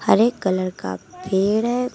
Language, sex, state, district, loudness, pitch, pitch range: Hindi, female, Uttar Pradesh, Lucknow, -21 LUFS, 195 Hz, 185-230 Hz